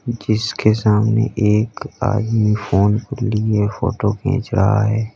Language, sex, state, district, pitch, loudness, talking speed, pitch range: Hindi, male, Uttar Pradesh, Lalitpur, 110 Hz, -18 LUFS, 115 wpm, 105-115 Hz